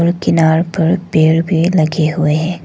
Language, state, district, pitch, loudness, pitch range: Hindi, Arunachal Pradesh, Lower Dibang Valley, 165 Hz, -13 LUFS, 160-170 Hz